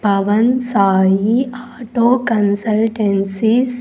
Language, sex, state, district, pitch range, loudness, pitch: Telugu, female, Andhra Pradesh, Sri Satya Sai, 200-245 Hz, -15 LUFS, 220 Hz